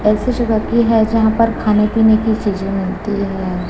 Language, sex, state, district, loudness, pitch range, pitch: Hindi, female, Chhattisgarh, Raipur, -15 LUFS, 200-225 Hz, 215 Hz